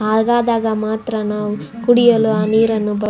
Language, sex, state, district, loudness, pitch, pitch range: Kannada, female, Karnataka, Raichur, -16 LUFS, 220 Hz, 215-230 Hz